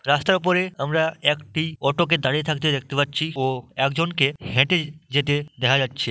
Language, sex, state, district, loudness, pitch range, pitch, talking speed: Bengali, male, West Bengal, Malda, -22 LUFS, 135-160 Hz, 145 Hz, 165 wpm